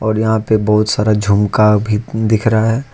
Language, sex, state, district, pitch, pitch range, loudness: Hindi, male, Jharkhand, Ranchi, 110 Hz, 105-110 Hz, -14 LUFS